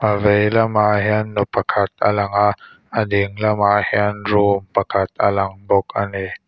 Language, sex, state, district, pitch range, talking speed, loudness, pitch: Mizo, male, Mizoram, Aizawl, 100-105 Hz, 185 wpm, -18 LUFS, 105 Hz